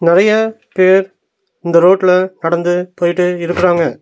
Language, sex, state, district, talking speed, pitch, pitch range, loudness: Tamil, male, Tamil Nadu, Nilgiris, 105 wpm, 180 Hz, 175-185 Hz, -13 LUFS